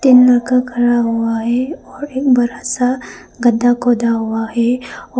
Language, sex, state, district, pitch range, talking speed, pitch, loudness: Hindi, female, Arunachal Pradesh, Papum Pare, 235-255 Hz, 160 wpm, 245 Hz, -15 LUFS